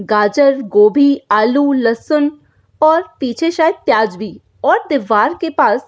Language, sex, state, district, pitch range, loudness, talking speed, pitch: Hindi, female, Bihar, Saran, 220-310 Hz, -14 LUFS, 145 wpm, 280 Hz